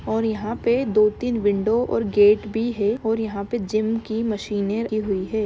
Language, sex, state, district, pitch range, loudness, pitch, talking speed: Hindi, female, Bihar, Jamui, 210-225 Hz, -22 LUFS, 220 Hz, 210 wpm